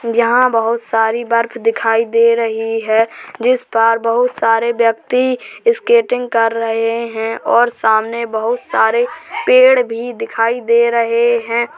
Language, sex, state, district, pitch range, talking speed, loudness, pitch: Hindi, female, Uttar Pradesh, Jalaun, 225-245 Hz, 140 wpm, -14 LUFS, 230 Hz